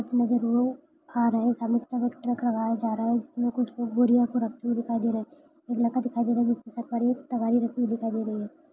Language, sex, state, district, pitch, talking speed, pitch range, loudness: Hindi, male, Maharashtra, Solapur, 235 Hz, 110 wpm, 230-245 Hz, -27 LUFS